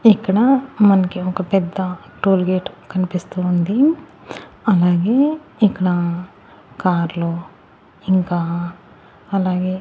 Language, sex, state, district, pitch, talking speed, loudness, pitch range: Telugu, female, Andhra Pradesh, Annamaya, 185 Hz, 75 wpm, -18 LUFS, 175-200 Hz